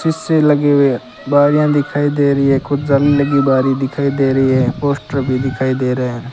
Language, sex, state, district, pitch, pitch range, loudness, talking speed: Hindi, male, Rajasthan, Bikaner, 140 Hz, 130-145 Hz, -14 LUFS, 210 wpm